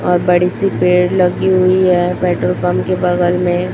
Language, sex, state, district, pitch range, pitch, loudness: Hindi, female, Chhattisgarh, Raipur, 175-185 Hz, 180 Hz, -14 LUFS